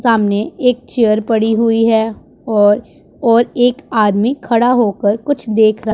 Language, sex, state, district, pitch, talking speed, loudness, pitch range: Hindi, male, Punjab, Pathankot, 225 Hz, 150 wpm, -14 LUFS, 215-245 Hz